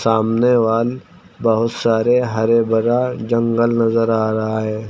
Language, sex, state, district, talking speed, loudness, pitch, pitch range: Hindi, male, Uttar Pradesh, Lucknow, 135 wpm, -17 LUFS, 115 Hz, 110-120 Hz